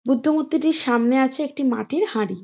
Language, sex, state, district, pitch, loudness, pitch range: Bengali, female, West Bengal, Jhargram, 265 Hz, -21 LUFS, 240-310 Hz